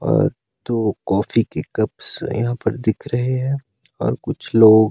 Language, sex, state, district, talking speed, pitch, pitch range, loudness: Hindi, male, Himachal Pradesh, Shimla, 160 wpm, 120 Hz, 110-130 Hz, -20 LUFS